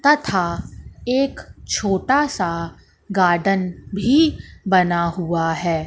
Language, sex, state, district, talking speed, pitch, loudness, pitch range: Hindi, female, Madhya Pradesh, Katni, 90 wpm, 190 Hz, -20 LUFS, 170-250 Hz